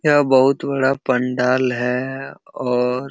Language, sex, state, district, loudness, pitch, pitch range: Hindi, male, Uttar Pradesh, Hamirpur, -18 LUFS, 130 Hz, 125-135 Hz